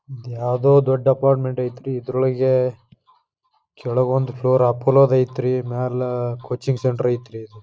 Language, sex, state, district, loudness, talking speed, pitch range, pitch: Kannada, male, Karnataka, Dharwad, -20 LUFS, 125 wpm, 125-130 Hz, 130 Hz